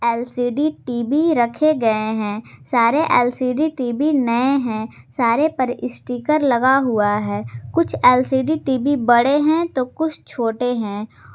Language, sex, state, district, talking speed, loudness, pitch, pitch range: Hindi, female, Jharkhand, Garhwa, 130 wpm, -19 LUFS, 250 Hz, 235-285 Hz